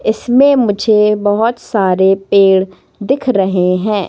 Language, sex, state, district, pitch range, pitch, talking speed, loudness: Hindi, female, Madhya Pradesh, Katni, 190-230 Hz, 205 Hz, 115 wpm, -12 LUFS